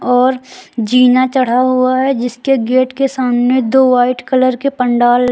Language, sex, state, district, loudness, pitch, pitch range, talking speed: Hindi, female, Uttar Pradesh, Lucknow, -13 LUFS, 255 Hz, 245-260 Hz, 170 wpm